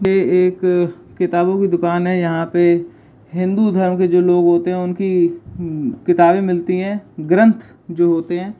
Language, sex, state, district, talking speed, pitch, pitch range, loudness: Hindi, male, Bihar, Begusarai, 160 wpm, 180 Hz, 170-185 Hz, -16 LUFS